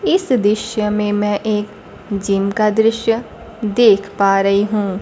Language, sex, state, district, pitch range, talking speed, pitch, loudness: Hindi, female, Bihar, Kaimur, 200-225 Hz, 145 wpm, 210 Hz, -16 LUFS